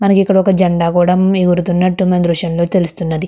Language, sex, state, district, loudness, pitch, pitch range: Telugu, female, Andhra Pradesh, Krishna, -13 LUFS, 180 Hz, 170-190 Hz